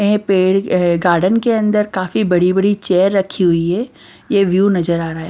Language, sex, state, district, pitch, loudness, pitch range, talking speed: Hindi, female, Bihar, Patna, 190 Hz, -15 LUFS, 180-205 Hz, 190 wpm